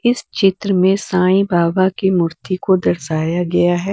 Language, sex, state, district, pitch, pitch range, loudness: Hindi, female, Bihar, West Champaran, 185 Hz, 175-195 Hz, -16 LUFS